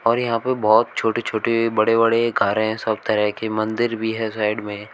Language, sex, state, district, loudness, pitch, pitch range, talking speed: Hindi, male, Uttar Pradesh, Shamli, -20 LUFS, 110 Hz, 110-115 Hz, 205 wpm